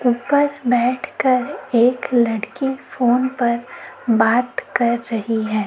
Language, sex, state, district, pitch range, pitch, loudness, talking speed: Hindi, female, Chhattisgarh, Raipur, 230-255 Hz, 240 Hz, -19 LUFS, 115 wpm